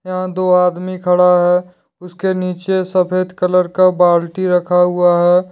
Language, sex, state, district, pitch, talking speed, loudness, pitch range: Hindi, male, Jharkhand, Deoghar, 180 Hz, 150 wpm, -14 LUFS, 180-185 Hz